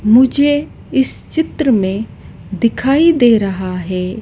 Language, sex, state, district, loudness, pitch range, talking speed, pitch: Hindi, female, Madhya Pradesh, Dhar, -14 LUFS, 195-275 Hz, 115 wpm, 235 Hz